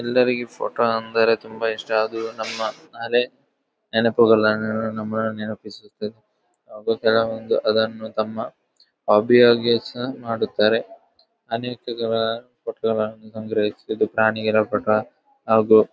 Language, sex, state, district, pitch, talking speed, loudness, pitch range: Kannada, male, Karnataka, Dakshina Kannada, 110 Hz, 85 wpm, -21 LUFS, 110-115 Hz